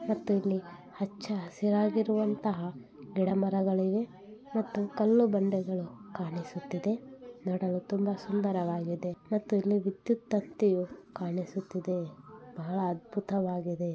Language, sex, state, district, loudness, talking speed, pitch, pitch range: Kannada, female, Karnataka, Bellary, -32 LUFS, 85 wpm, 195 Hz, 180-210 Hz